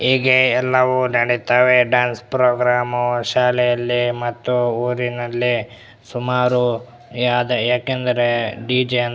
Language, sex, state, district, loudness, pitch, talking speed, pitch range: Kannada, male, Karnataka, Bellary, -18 LUFS, 125 Hz, 90 wpm, 120-125 Hz